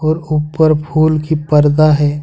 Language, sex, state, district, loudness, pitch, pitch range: Hindi, male, Jharkhand, Ranchi, -13 LUFS, 155 Hz, 150-155 Hz